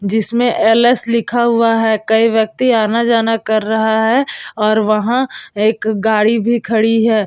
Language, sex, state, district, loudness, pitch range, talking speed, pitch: Hindi, female, Bihar, Vaishali, -14 LUFS, 220-235 Hz, 165 wpm, 225 Hz